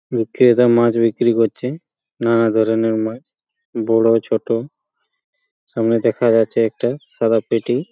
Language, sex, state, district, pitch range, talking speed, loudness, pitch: Bengali, male, West Bengal, Purulia, 115-125 Hz, 130 wpm, -17 LUFS, 115 Hz